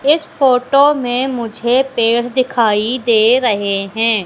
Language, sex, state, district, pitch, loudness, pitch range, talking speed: Hindi, female, Madhya Pradesh, Katni, 245 Hz, -14 LUFS, 225-260 Hz, 125 wpm